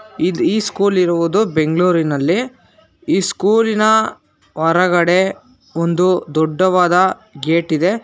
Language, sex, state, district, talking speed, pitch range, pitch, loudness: Kannada, male, Karnataka, Bangalore, 90 wpm, 170-205 Hz, 180 Hz, -15 LUFS